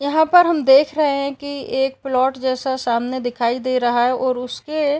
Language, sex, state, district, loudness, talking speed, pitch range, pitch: Hindi, female, Uttar Pradesh, Gorakhpur, -18 LUFS, 205 wpm, 255-285 Hz, 265 Hz